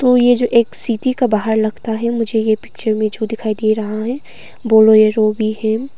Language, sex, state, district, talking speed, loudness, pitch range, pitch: Hindi, female, Arunachal Pradesh, Papum Pare, 230 wpm, -15 LUFS, 215-235 Hz, 220 Hz